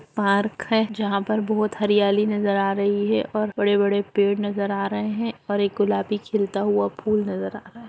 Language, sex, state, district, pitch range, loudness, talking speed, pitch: Hindi, female, Bihar, Lakhisarai, 200-215 Hz, -23 LUFS, 205 wpm, 205 Hz